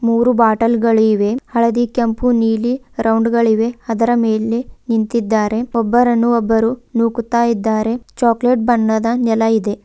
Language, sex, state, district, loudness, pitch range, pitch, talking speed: Kannada, female, Karnataka, Bidar, -15 LUFS, 225-240 Hz, 230 Hz, 110 wpm